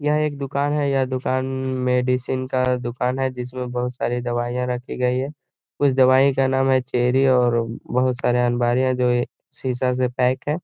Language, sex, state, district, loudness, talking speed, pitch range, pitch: Hindi, male, Bihar, Gaya, -21 LUFS, 190 wpm, 125-130 Hz, 130 Hz